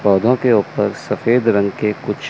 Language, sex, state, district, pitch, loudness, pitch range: Hindi, male, Chandigarh, Chandigarh, 105 Hz, -17 LUFS, 100-125 Hz